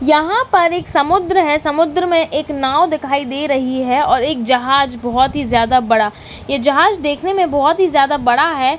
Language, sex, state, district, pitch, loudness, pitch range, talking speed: Hindi, female, Uttarakhand, Uttarkashi, 290 Hz, -14 LUFS, 260-335 Hz, 200 wpm